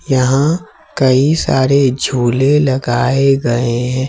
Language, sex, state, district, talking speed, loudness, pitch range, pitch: Hindi, male, Jharkhand, Ranchi, 105 wpm, -13 LUFS, 125-135 Hz, 130 Hz